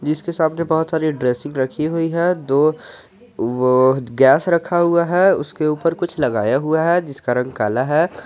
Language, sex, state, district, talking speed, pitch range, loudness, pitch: Hindi, male, Jharkhand, Garhwa, 175 wpm, 135-170 Hz, -18 LUFS, 155 Hz